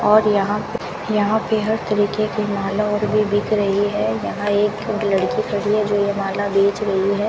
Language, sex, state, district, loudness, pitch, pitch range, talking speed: Hindi, female, Rajasthan, Bikaner, -19 LUFS, 205 Hz, 200-215 Hz, 215 wpm